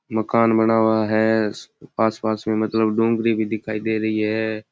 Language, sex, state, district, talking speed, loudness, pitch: Rajasthani, male, Rajasthan, Churu, 165 wpm, -20 LUFS, 110 Hz